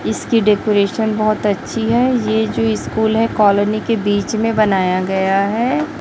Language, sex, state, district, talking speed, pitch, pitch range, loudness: Hindi, female, Chhattisgarh, Raipur, 160 wpm, 215 Hz, 205-225 Hz, -16 LUFS